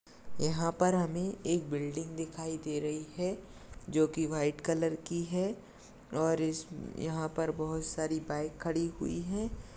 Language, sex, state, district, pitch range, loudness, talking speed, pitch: Hindi, male, Maharashtra, Dhule, 155-170 Hz, -34 LUFS, 145 wpm, 160 Hz